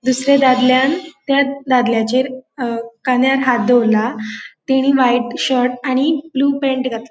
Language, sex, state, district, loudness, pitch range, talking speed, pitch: Konkani, female, Goa, North and South Goa, -16 LUFS, 245-275 Hz, 135 wpm, 255 Hz